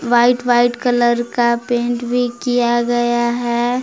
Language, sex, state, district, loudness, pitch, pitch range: Hindi, female, Jharkhand, Palamu, -16 LUFS, 240 Hz, 240-245 Hz